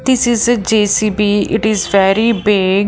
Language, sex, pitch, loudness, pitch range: English, female, 210 Hz, -13 LUFS, 200-230 Hz